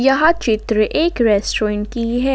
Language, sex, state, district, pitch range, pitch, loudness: Hindi, female, Jharkhand, Ranchi, 215-270 Hz, 230 Hz, -17 LUFS